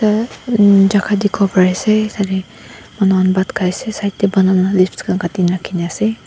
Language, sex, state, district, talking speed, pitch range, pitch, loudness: Nagamese, female, Nagaland, Dimapur, 155 wpm, 185-210 Hz, 195 Hz, -15 LUFS